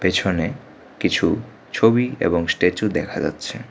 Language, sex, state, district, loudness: Bengali, male, Tripura, West Tripura, -21 LUFS